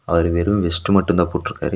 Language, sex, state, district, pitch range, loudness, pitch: Tamil, male, Tamil Nadu, Nilgiris, 85-100 Hz, -18 LUFS, 90 Hz